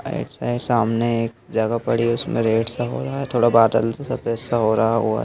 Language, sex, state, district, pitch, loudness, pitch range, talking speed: Hindi, male, Madhya Pradesh, Dhar, 115 Hz, -20 LUFS, 115-120 Hz, 220 wpm